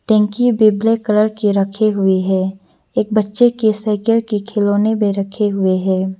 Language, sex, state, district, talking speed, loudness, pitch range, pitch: Hindi, female, Arunachal Pradesh, Lower Dibang Valley, 175 wpm, -16 LUFS, 195-220 Hz, 210 Hz